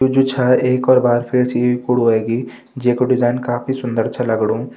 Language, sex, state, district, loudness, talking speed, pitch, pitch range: Hindi, male, Uttarakhand, Uttarkashi, -16 LUFS, 200 wpm, 125 Hz, 120-125 Hz